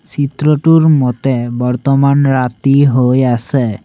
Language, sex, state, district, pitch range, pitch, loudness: Assamese, male, Assam, Sonitpur, 125-140 Hz, 135 Hz, -12 LUFS